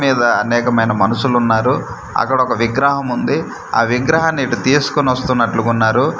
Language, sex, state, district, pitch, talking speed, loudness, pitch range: Telugu, male, Andhra Pradesh, Manyam, 120 Hz, 125 wpm, -15 LUFS, 115-135 Hz